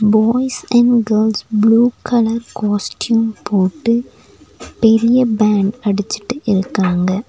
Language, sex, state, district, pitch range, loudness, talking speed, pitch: Tamil, female, Tamil Nadu, Nilgiris, 205-235 Hz, -15 LUFS, 90 wpm, 220 Hz